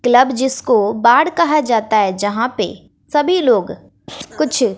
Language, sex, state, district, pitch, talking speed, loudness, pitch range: Hindi, female, Bihar, West Champaran, 250 Hz, 140 wpm, -15 LUFS, 225-295 Hz